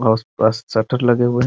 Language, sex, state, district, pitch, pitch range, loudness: Hindi, male, Bihar, Muzaffarpur, 115 Hz, 110-120 Hz, -18 LUFS